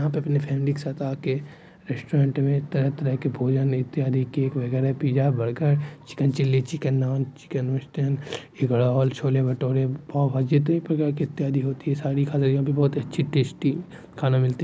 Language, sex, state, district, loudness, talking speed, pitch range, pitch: Hindi, male, Bihar, Supaul, -24 LUFS, 185 wpm, 135-145 Hz, 140 Hz